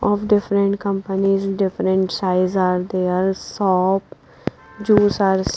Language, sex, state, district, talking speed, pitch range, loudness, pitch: English, female, Punjab, Pathankot, 95 wpm, 185-200 Hz, -19 LUFS, 195 Hz